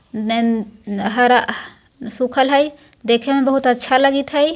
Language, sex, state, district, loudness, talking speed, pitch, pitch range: Hindi, female, Bihar, Jahanabad, -17 LUFS, 130 wpm, 250 Hz, 230-275 Hz